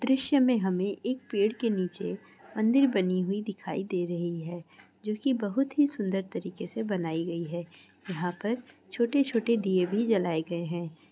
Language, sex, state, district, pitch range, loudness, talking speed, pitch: Hindi, female, Bihar, Purnia, 175-235 Hz, -29 LUFS, 175 wpm, 200 Hz